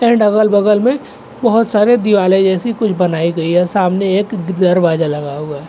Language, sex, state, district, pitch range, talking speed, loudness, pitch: Hindi, male, Chhattisgarh, Bilaspur, 175-215 Hz, 200 wpm, -13 LUFS, 195 Hz